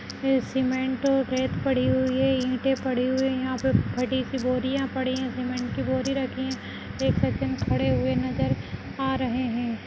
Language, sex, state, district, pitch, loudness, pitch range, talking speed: Kumaoni, female, Uttarakhand, Uttarkashi, 255 Hz, -26 LUFS, 245-265 Hz, 195 wpm